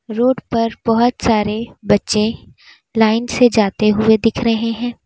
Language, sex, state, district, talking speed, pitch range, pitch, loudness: Hindi, female, Uttar Pradesh, Lalitpur, 140 wpm, 220-235 Hz, 225 Hz, -16 LUFS